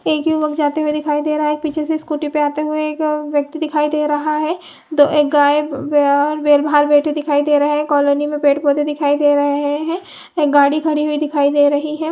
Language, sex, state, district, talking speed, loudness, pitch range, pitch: Hindi, female, Chhattisgarh, Raigarh, 245 wpm, -16 LUFS, 290-305 Hz, 300 Hz